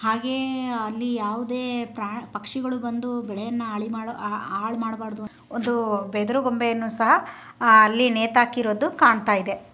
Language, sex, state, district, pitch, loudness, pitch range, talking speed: Kannada, female, Karnataka, Chamarajanagar, 230 Hz, -23 LUFS, 215-245 Hz, 105 wpm